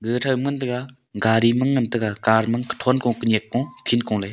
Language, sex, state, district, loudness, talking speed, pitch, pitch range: Wancho, male, Arunachal Pradesh, Longding, -21 LUFS, 265 wpm, 120 Hz, 110-130 Hz